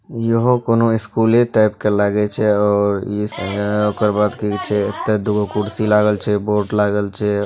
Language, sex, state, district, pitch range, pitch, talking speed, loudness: Hindi, male, Bihar, Bhagalpur, 105-110 Hz, 105 Hz, 175 wpm, -17 LUFS